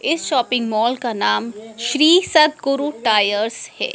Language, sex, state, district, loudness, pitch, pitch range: Hindi, female, Madhya Pradesh, Dhar, -17 LUFS, 245 Hz, 220-300 Hz